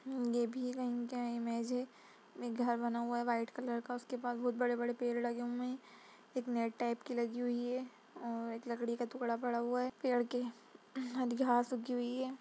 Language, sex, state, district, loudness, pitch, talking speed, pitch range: Hindi, female, Uttar Pradesh, Budaun, -38 LUFS, 240 Hz, 215 wpm, 235-250 Hz